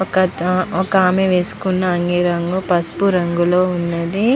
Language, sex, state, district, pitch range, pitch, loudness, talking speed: Telugu, female, Andhra Pradesh, Chittoor, 175-190 Hz, 180 Hz, -17 LUFS, 135 wpm